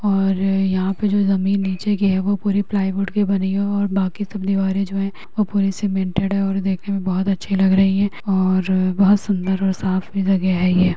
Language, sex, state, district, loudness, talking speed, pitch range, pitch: Magahi, female, Bihar, Gaya, -19 LUFS, 200 wpm, 190-200 Hz, 195 Hz